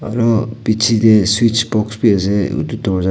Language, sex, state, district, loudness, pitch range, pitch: Nagamese, male, Nagaland, Kohima, -15 LUFS, 105-115 Hz, 110 Hz